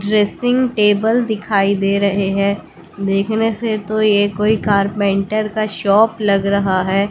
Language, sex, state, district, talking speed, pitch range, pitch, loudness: Hindi, female, Bihar, West Champaran, 145 wpm, 200-215 Hz, 205 Hz, -16 LUFS